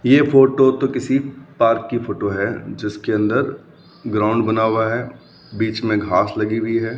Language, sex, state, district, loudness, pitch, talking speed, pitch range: Hindi, male, Rajasthan, Bikaner, -18 LUFS, 115 Hz, 170 wpm, 110-130 Hz